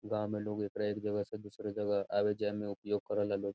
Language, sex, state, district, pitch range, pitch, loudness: Bhojpuri, male, Bihar, Saran, 100-105 Hz, 105 Hz, -36 LUFS